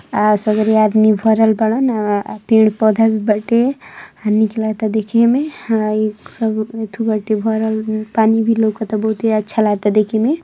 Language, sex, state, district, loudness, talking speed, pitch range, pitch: Hindi, female, Uttar Pradesh, Ghazipur, -16 LUFS, 170 wpm, 215-225 Hz, 220 Hz